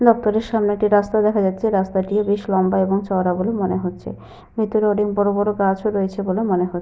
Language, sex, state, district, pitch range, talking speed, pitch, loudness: Bengali, female, Jharkhand, Sahebganj, 190-215 Hz, 200 wpm, 205 Hz, -19 LUFS